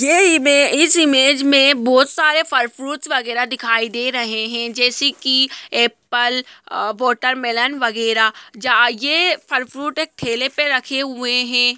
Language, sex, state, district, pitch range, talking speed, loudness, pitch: Hindi, male, Bihar, Muzaffarpur, 240-285 Hz, 155 wpm, -16 LUFS, 255 Hz